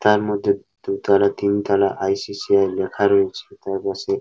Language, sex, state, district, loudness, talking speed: Bengali, male, West Bengal, Paschim Medinipur, -20 LUFS, 155 wpm